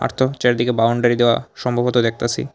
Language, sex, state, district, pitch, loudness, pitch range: Bengali, male, Tripura, Unakoti, 120 Hz, -18 LUFS, 120-125 Hz